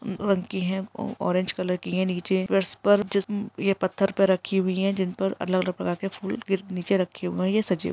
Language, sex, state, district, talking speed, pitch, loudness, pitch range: Hindi, female, Chhattisgarh, Raigarh, 220 wpm, 190 Hz, -25 LUFS, 185-195 Hz